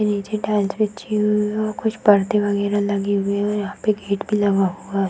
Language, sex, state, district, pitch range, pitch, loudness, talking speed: Hindi, female, Bihar, Darbhanga, 200-210 Hz, 205 Hz, -20 LUFS, 235 wpm